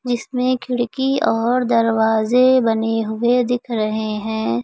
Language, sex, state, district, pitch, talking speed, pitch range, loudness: Hindi, female, Uttar Pradesh, Lucknow, 235 Hz, 115 wpm, 220-250 Hz, -18 LUFS